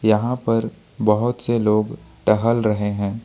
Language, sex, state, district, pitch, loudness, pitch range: Hindi, male, Jharkhand, Ranchi, 110 Hz, -20 LUFS, 105-115 Hz